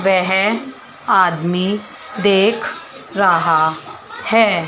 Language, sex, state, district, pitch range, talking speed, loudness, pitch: Hindi, female, Chandigarh, Chandigarh, 180-210 Hz, 65 wpm, -16 LUFS, 195 Hz